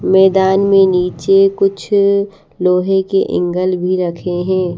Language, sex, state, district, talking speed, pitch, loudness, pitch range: Hindi, female, Haryana, Charkhi Dadri, 125 wpm, 190 Hz, -14 LUFS, 180-195 Hz